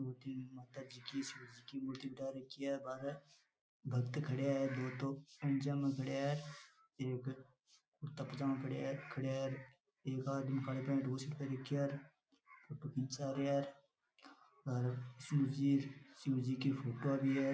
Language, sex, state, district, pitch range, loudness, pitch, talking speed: Rajasthani, male, Rajasthan, Nagaur, 130-140 Hz, -41 LUFS, 135 Hz, 145 wpm